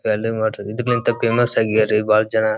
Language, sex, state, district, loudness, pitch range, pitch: Kannada, male, Karnataka, Dharwad, -18 LUFS, 110-115 Hz, 110 Hz